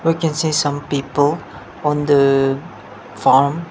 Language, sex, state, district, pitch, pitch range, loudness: English, male, Nagaland, Dimapur, 145 Hz, 140-155 Hz, -17 LUFS